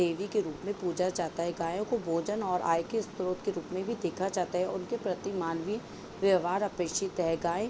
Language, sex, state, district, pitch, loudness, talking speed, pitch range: Hindi, female, Jharkhand, Jamtara, 185 Hz, -32 LUFS, 235 wpm, 170-205 Hz